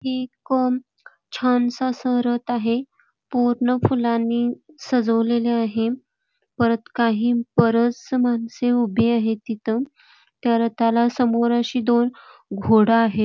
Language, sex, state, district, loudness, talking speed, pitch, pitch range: Marathi, female, Karnataka, Belgaum, -21 LUFS, 105 wpm, 240 Hz, 230-250 Hz